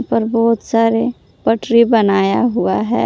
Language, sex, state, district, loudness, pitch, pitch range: Hindi, female, Jharkhand, Palamu, -15 LUFS, 230 Hz, 225-235 Hz